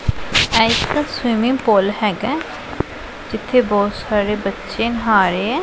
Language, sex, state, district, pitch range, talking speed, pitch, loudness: Punjabi, female, Punjab, Pathankot, 205-235 Hz, 130 wpm, 220 Hz, -18 LUFS